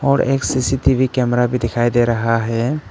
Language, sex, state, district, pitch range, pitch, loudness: Hindi, male, Arunachal Pradesh, Papum Pare, 120-135 Hz, 125 Hz, -17 LUFS